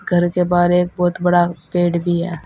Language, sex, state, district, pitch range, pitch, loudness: Hindi, female, Uttar Pradesh, Saharanpur, 175-180 Hz, 175 Hz, -17 LUFS